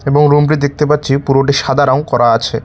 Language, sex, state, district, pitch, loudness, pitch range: Bengali, male, West Bengal, Cooch Behar, 140 Hz, -12 LUFS, 135-145 Hz